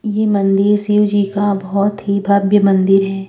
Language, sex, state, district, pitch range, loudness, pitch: Hindi, female, Uttar Pradesh, Jyotiba Phule Nagar, 195-205 Hz, -14 LUFS, 200 Hz